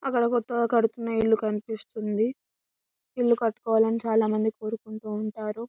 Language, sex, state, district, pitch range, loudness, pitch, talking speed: Telugu, female, Telangana, Karimnagar, 215-235 Hz, -26 LUFS, 225 Hz, 125 wpm